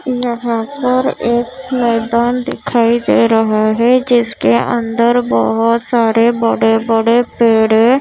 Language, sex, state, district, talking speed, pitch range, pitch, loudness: Hindi, female, Maharashtra, Mumbai Suburban, 120 wpm, 225-245 Hz, 235 Hz, -13 LUFS